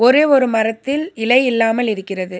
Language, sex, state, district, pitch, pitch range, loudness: Tamil, female, Tamil Nadu, Nilgiris, 235 Hz, 220-260 Hz, -16 LUFS